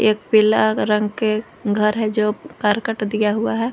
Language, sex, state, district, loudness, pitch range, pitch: Hindi, female, Jharkhand, Garhwa, -19 LUFS, 210-220 Hz, 215 Hz